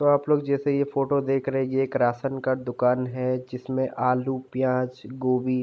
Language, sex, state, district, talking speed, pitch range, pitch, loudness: Hindi, male, Uttar Pradesh, Jalaun, 215 wpm, 125-135 Hz, 130 Hz, -25 LUFS